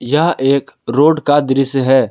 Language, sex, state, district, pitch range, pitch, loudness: Hindi, male, Jharkhand, Palamu, 130-145 Hz, 135 Hz, -14 LUFS